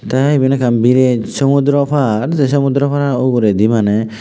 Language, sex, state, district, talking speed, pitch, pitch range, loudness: Chakma, male, Tripura, West Tripura, 155 wpm, 130 Hz, 115-140 Hz, -13 LUFS